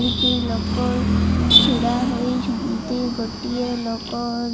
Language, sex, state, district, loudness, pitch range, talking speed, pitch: Odia, female, Odisha, Malkangiri, -20 LUFS, 235-245 Hz, 95 wpm, 240 Hz